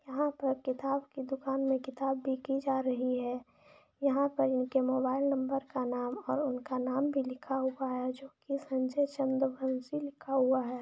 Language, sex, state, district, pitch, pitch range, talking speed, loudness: Hindi, female, Jharkhand, Jamtara, 265 Hz, 255-275 Hz, 185 wpm, -33 LUFS